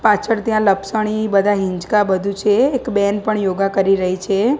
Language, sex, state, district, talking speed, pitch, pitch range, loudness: Gujarati, female, Gujarat, Gandhinagar, 180 wpm, 205 Hz, 195-215 Hz, -17 LUFS